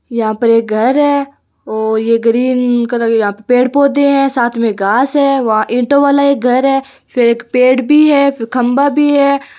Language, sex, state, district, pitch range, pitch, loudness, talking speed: Hindi, female, Rajasthan, Churu, 230-280 Hz, 250 Hz, -12 LUFS, 215 wpm